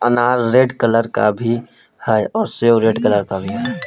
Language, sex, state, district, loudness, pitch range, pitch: Hindi, male, Jharkhand, Palamu, -16 LUFS, 110-120 Hz, 115 Hz